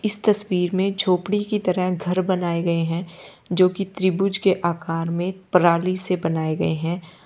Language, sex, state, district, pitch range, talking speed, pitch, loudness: Hindi, female, Uttar Pradesh, Lalitpur, 170-190 Hz, 180 wpm, 180 Hz, -22 LUFS